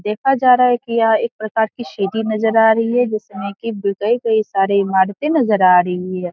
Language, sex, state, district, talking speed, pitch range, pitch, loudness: Hindi, female, Bihar, Araria, 225 wpm, 195-230 Hz, 220 Hz, -16 LUFS